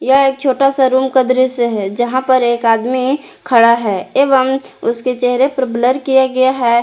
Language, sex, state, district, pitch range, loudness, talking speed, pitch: Hindi, female, Jharkhand, Palamu, 240-265 Hz, -13 LUFS, 195 wpm, 255 Hz